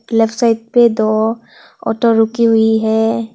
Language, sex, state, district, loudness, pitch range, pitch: Hindi, female, Tripura, West Tripura, -14 LUFS, 220-230 Hz, 225 Hz